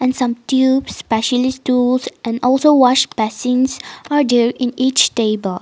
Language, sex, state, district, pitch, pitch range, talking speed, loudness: English, female, Nagaland, Dimapur, 250 Hz, 235-260 Hz, 150 wpm, -16 LUFS